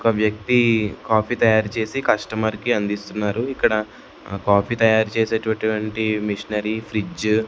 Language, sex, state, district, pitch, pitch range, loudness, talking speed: Telugu, male, Andhra Pradesh, Sri Satya Sai, 110 Hz, 105-110 Hz, -21 LUFS, 120 wpm